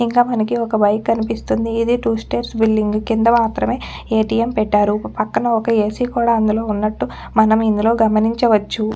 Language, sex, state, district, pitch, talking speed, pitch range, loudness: Telugu, female, Telangana, Nalgonda, 225 Hz, 145 wpm, 215-230 Hz, -17 LUFS